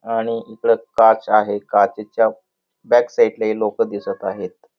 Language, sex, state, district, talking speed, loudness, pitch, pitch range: Marathi, male, Maharashtra, Pune, 140 wpm, -18 LUFS, 115 Hz, 110-120 Hz